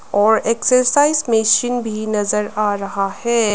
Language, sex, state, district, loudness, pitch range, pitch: Hindi, female, Arunachal Pradesh, Lower Dibang Valley, -16 LUFS, 210-240 Hz, 220 Hz